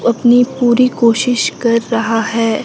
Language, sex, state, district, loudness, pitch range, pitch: Hindi, female, Himachal Pradesh, Shimla, -13 LUFS, 230-245 Hz, 235 Hz